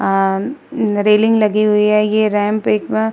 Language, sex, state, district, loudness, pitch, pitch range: Hindi, female, Uttar Pradesh, Muzaffarnagar, -15 LUFS, 210 Hz, 195-215 Hz